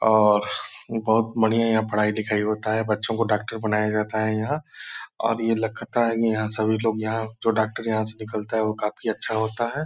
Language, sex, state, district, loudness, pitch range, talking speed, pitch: Hindi, male, Bihar, Purnia, -24 LUFS, 110-115 Hz, 205 wpm, 110 Hz